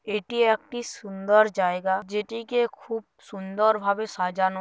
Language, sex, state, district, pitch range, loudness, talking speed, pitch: Bengali, female, West Bengal, Paschim Medinipur, 195-225 Hz, -25 LUFS, 115 wpm, 210 Hz